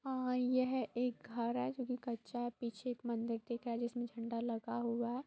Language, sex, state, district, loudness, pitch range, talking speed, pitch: Hindi, female, Bihar, East Champaran, -40 LUFS, 235-250 Hz, 230 wpm, 240 Hz